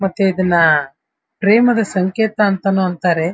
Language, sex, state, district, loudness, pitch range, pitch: Kannada, female, Karnataka, Dharwad, -15 LUFS, 175-210 Hz, 190 Hz